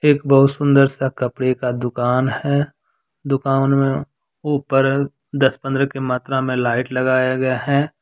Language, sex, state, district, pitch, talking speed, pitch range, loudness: Hindi, male, Jharkhand, Deoghar, 135 Hz, 150 wpm, 130-140 Hz, -18 LUFS